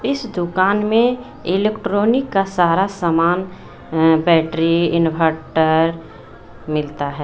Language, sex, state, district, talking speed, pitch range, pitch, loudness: Hindi, female, Jharkhand, Garhwa, 100 wpm, 160-200 Hz, 170 Hz, -17 LUFS